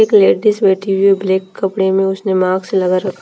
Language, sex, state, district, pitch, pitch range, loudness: Hindi, female, Punjab, Fazilka, 190 Hz, 190-195 Hz, -14 LUFS